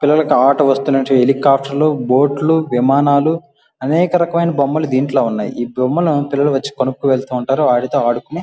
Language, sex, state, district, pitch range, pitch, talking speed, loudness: Telugu, male, Andhra Pradesh, Guntur, 130-150 Hz, 140 Hz, 155 wpm, -15 LUFS